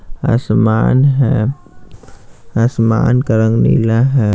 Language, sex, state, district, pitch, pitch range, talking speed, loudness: Hindi, male, Bihar, Patna, 115 Hz, 110-130 Hz, 95 wpm, -13 LUFS